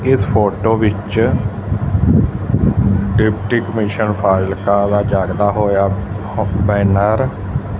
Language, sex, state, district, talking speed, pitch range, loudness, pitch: Punjabi, male, Punjab, Fazilka, 75 wpm, 100-110 Hz, -16 LUFS, 105 Hz